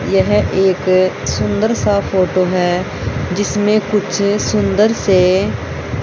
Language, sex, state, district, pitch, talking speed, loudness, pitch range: Hindi, female, Haryana, Rohtak, 185 Hz, 100 wpm, -15 LUFS, 175-205 Hz